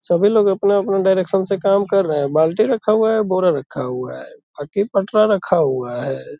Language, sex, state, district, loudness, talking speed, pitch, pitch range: Hindi, male, Bihar, Purnia, -17 LUFS, 205 wpm, 195 Hz, 150-205 Hz